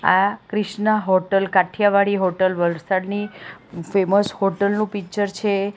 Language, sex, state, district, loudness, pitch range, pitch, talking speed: Gujarati, female, Gujarat, Valsad, -20 LUFS, 185-205 Hz, 200 Hz, 115 wpm